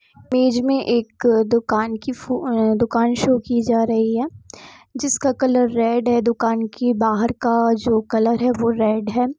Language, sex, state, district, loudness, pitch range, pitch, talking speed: Hindi, female, Jharkhand, Jamtara, -19 LUFS, 225-250 Hz, 235 Hz, 165 wpm